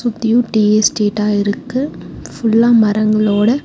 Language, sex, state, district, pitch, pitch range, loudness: Tamil, female, Tamil Nadu, Nilgiris, 215 Hz, 210-235 Hz, -14 LUFS